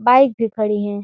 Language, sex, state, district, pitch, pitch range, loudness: Hindi, female, Uttar Pradesh, Ghazipur, 220 Hz, 210-245 Hz, -17 LUFS